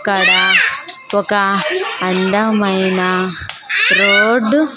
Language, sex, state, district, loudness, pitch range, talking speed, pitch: Telugu, female, Andhra Pradesh, Sri Satya Sai, -13 LUFS, 190-245 Hz, 65 wpm, 205 Hz